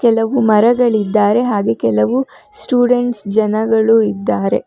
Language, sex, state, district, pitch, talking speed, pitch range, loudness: Kannada, female, Karnataka, Bangalore, 220 Hz, 90 wpm, 205-245 Hz, -14 LUFS